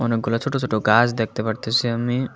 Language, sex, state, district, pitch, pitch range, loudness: Bengali, female, Tripura, West Tripura, 115 Hz, 110-120 Hz, -21 LUFS